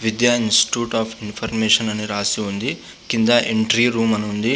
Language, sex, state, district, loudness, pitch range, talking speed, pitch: Telugu, male, Andhra Pradesh, Visakhapatnam, -19 LUFS, 105-115 Hz, 170 wpm, 110 Hz